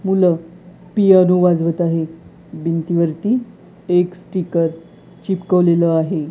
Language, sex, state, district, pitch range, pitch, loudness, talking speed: Marathi, female, Maharashtra, Gondia, 165-185 Hz, 175 Hz, -17 LUFS, 85 wpm